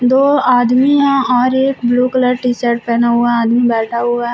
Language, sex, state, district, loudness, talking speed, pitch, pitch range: Hindi, female, Uttar Pradesh, Shamli, -13 LUFS, 205 wpm, 245 Hz, 240-260 Hz